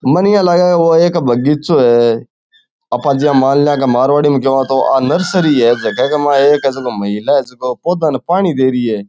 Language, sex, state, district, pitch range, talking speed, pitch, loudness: Rajasthani, male, Rajasthan, Churu, 125-170 Hz, 210 wpm, 140 Hz, -12 LUFS